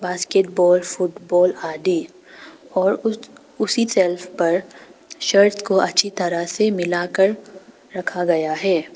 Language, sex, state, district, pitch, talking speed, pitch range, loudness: Hindi, female, Arunachal Pradesh, Papum Pare, 190 Hz, 115 wpm, 180-215 Hz, -19 LUFS